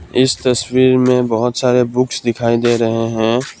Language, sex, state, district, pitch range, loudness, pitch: Hindi, male, Assam, Kamrup Metropolitan, 115-125 Hz, -15 LUFS, 125 Hz